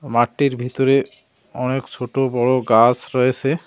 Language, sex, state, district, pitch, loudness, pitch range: Bengali, male, West Bengal, Cooch Behar, 130 Hz, -18 LUFS, 125-135 Hz